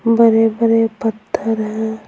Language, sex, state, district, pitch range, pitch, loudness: Hindi, female, Bihar, Patna, 220-230 Hz, 225 Hz, -16 LUFS